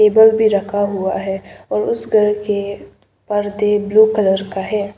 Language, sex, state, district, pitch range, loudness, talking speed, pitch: Hindi, female, Arunachal Pradesh, Papum Pare, 195-210 Hz, -16 LUFS, 170 wpm, 205 Hz